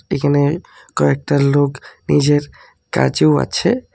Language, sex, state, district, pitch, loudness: Bengali, male, West Bengal, Alipurduar, 145 Hz, -16 LUFS